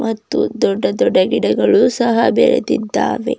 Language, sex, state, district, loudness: Kannada, female, Karnataka, Bidar, -15 LUFS